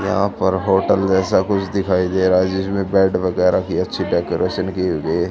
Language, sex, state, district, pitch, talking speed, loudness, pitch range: Hindi, female, Haryana, Charkhi Dadri, 95 Hz, 205 wpm, -18 LUFS, 90-95 Hz